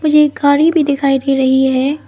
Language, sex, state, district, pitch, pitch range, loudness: Hindi, female, Arunachal Pradesh, Lower Dibang Valley, 285 Hz, 270-300 Hz, -12 LUFS